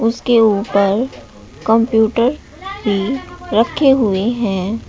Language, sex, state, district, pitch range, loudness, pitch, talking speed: Hindi, male, Uttar Pradesh, Shamli, 200-240 Hz, -16 LUFS, 225 Hz, 85 wpm